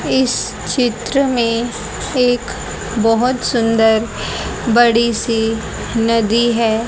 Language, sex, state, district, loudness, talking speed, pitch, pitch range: Hindi, female, Haryana, Jhajjar, -16 LUFS, 85 wpm, 230 Hz, 225-245 Hz